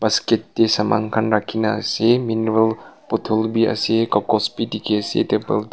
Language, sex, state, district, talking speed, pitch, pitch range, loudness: Nagamese, male, Nagaland, Kohima, 155 wpm, 110 Hz, 110-115 Hz, -19 LUFS